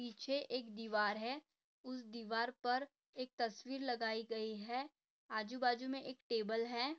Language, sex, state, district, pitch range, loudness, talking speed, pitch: Hindi, female, Maharashtra, Pune, 225-260 Hz, -42 LUFS, 155 wpm, 245 Hz